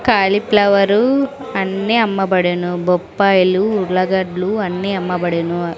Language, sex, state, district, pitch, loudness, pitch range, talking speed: Telugu, female, Andhra Pradesh, Sri Satya Sai, 195 Hz, -16 LUFS, 180-205 Hz, 75 wpm